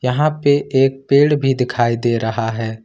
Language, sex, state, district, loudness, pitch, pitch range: Hindi, male, Jharkhand, Ranchi, -16 LUFS, 130 Hz, 115-140 Hz